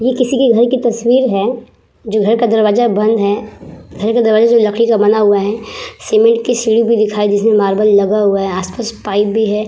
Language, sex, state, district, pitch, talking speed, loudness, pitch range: Hindi, female, Uttar Pradesh, Hamirpur, 220 Hz, 250 wpm, -13 LUFS, 210-235 Hz